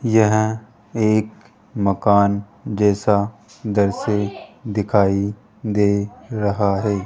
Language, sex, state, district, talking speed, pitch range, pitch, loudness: Hindi, male, Rajasthan, Jaipur, 75 wpm, 100-110 Hz, 105 Hz, -19 LUFS